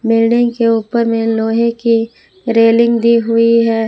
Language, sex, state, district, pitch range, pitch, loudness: Hindi, female, Jharkhand, Palamu, 225-235 Hz, 230 Hz, -13 LUFS